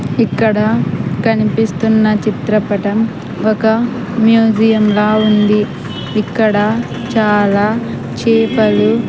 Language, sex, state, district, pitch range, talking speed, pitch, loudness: Telugu, female, Andhra Pradesh, Sri Satya Sai, 210-225 Hz, 65 wpm, 215 Hz, -13 LUFS